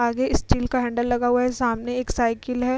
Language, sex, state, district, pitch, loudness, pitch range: Hindi, female, Uttar Pradesh, Muzaffarnagar, 245 Hz, -23 LUFS, 240-250 Hz